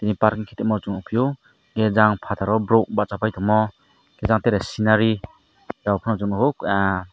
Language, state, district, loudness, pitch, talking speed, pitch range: Kokborok, Tripura, Dhalai, -21 LUFS, 110 Hz, 170 wpm, 100-110 Hz